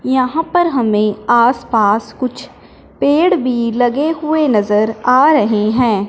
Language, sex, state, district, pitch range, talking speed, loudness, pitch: Hindi, male, Punjab, Fazilka, 220-295 Hz, 130 wpm, -14 LUFS, 245 Hz